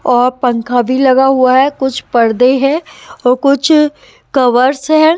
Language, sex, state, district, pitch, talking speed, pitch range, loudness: Hindi, female, Haryana, Jhajjar, 265 Hz, 150 wpm, 250-280 Hz, -11 LUFS